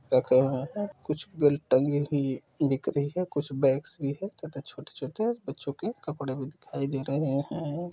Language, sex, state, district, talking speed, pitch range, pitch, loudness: Hindi, male, Uttar Pradesh, Budaun, 175 wpm, 135-160 Hz, 145 Hz, -29 LUFS